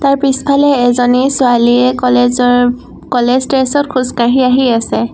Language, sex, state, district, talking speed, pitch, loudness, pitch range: Assamese, female, Assam, Sonitpur, 150 wpm, 250 Hz, -11 LUFS, 245-265 Hz